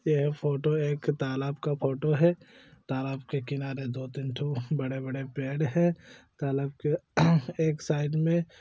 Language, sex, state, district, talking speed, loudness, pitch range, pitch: Hindi, male, Chhattisgarh, Korba, 145 wpm, -29 LUFS, 135-155 Hz, 145 Hz